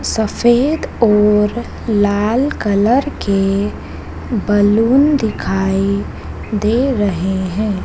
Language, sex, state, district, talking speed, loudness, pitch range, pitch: Hindi, female, Madhya Pradesh, Dhar, 75 wpm, -15 LUFS, 195-235 Hz, 210 Hz